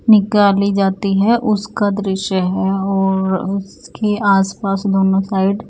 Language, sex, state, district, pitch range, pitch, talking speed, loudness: Hindi, male, Odisha, Nuapada, 195-205 Hz, 195 Hz, 125 wpm, -16 LUFS